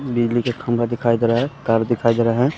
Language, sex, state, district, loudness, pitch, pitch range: Hindi, male, Bihar, West Champaran, -19 LUFS, 120 Hz, 115-125 Hz